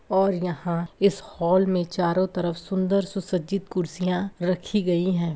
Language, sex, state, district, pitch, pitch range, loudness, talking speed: Hindi, female, Bihar, Begusarai, 185 Hz, 175-190 Hz, -25 LUFS, 145 wpm